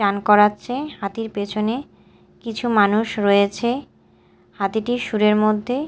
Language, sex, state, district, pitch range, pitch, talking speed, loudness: Bengali, female, Odisha, Malkangiri, 205-240 Hz, 215 Hz, 100 wpm, -20 LUFS